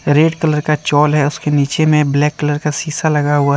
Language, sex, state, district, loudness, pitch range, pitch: Hindi, male, Jharkhand, Deoghar, -15 LUFS, 145-155 Hz, 150 Hz